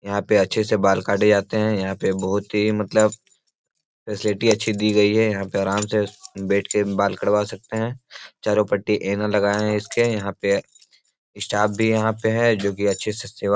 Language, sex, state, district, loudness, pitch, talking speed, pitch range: Hindi, male, Bihar, Jahanabad, -21 LUFS, 105 Hz, 210 wpm, 100-110 Hz